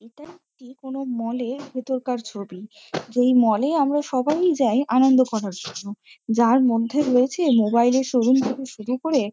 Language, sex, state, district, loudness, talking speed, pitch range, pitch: Bengali, female, West Bengal, Kolkata, -21 LUFS, 160 wpm, 230-270 Hz, 255 Hz